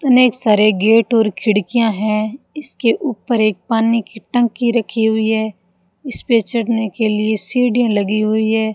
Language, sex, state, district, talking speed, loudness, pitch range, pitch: Hindi, female, Rajasthan, Bikaner, 165 wpm, -16 LUFS, 215-240 Hz, 220 Hz